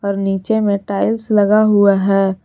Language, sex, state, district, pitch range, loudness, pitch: Hindi, female, Jharkhand, Garhwa, 195-215 Hz, -15 LUFS, 200 Hz